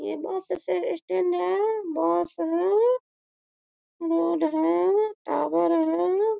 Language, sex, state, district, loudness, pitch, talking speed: Hindi, female, Bihar, Sitamarhi, -25 LUFS, 330 Hz, 105 wpm